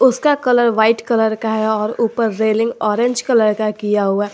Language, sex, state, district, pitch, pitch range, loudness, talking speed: Hindi, male, Jharkhand, Garhwa, 220 Hz, 215-235 Hz, -16 LUFS, 195 wpm